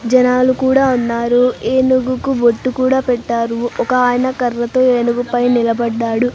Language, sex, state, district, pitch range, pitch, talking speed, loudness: Telugu, female, Andhra Pradesh, Sri Satya Sai, 235-255 Hz, 245 Hz, 125 wpm, -15 LUFS